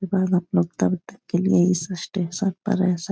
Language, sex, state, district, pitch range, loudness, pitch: Hindi, female, Bihar, Jahanabad, 175-195 Hz, -23 LUFS, 185 Hz